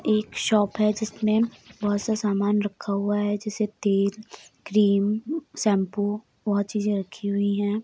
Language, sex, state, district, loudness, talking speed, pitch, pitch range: Hindi, female, Uttar Pradesh, Etah, -25 LUFS, 145 wpm, 210 Hz, 205-215 Hz